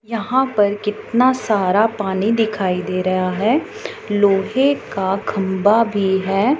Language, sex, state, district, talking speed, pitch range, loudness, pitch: Hindi, female, Punjab, Pathankot, 125 wpm, 195-230 Hz, -18 LUFS, 205 Hz